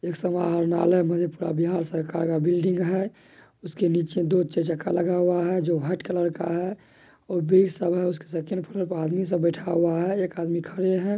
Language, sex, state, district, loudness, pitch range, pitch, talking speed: Maithili, male, Bihar, Madhepura, -25 LUFS, 170-185 Hz, 175 Hz, 195 wpm